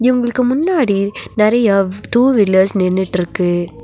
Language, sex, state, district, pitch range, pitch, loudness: Tamil, female, Tamil Nadu, Nilgiris, 190-245 Hz, 205 Hz, -14 LUFS